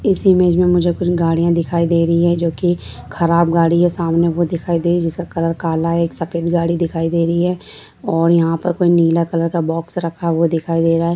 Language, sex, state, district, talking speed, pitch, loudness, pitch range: Hindi, female, Bihar, Darbhanga, 245 wpm, 170 Hz, -16 LUFS, 165-175 Hz